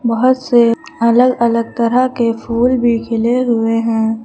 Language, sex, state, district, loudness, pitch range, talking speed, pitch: Hindi, male, Uttar Pradesh, Lucknow, -14 LUFS, 230-250 Hz, 140 wpm, 235 Hz